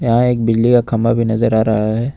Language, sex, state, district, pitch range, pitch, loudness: Hindi, male, Jharkhand, Ranchi, 110-120 Hz, 115 Hz, -15 LUFS